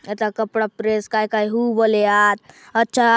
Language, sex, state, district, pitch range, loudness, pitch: Halbi, female, Chhattisgarh, Bastar, 215-230 Hz, -19 LUFS, 220 Hz